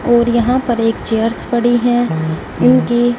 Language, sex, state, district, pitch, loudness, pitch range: Hindi, female, Punjab, Fazilka, 240 Hz, -14 LUFS, 225-240 Hz